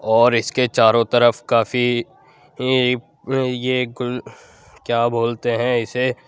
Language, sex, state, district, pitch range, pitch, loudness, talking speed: Hindi, male, Uttar Pradesh, Jyotiba Phule Nagar, 115-125 Hz, 120 Hz, -19 LUFS, 125 wpm